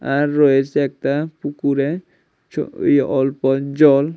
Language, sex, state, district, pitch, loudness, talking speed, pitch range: Bengali, male, Tripura, West Tripura, 140 Hz, -18 LUFS, 115 wpm, 135-145 Hz